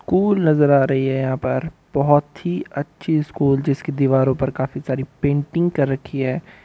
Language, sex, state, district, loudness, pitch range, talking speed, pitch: Hindi, male, Bihar, Sitamarhi, -20 LUFS, 135-155 Hz, 180 wpm, 140 Hz